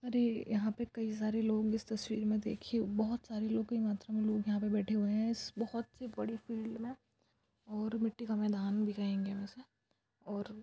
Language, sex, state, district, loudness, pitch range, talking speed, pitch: Hindi, female, Chhattisgarh, Sukma, -37 LUFS, 210-230 Hz, 205 wpm, 220 Hz